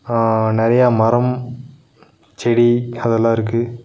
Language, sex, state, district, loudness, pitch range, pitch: Tamil, male, Tamil Nadu, Nilgiris, -16 LUFS, 115-125 Hz, 120 Hz